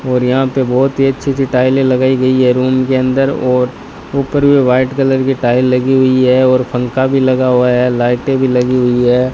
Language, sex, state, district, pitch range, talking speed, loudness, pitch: Hindi, male, Rajasthan, Bikaner, 125-135 Hz, 225 wpm, -12 LUFS, 130 Hz